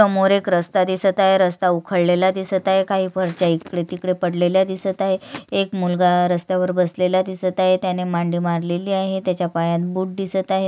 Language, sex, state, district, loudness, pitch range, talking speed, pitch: Marathi, female, Maharashtra, Sindhudurg, -19 LUFS, 180-190 Hz, 180 wpm, 185 Hz